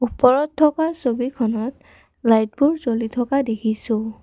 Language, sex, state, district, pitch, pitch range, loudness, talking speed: Assamese, female, Assam, Kamrup Metropolitan, 245 Hz, 225-275 Hz, -20 LUFS, 100 wpm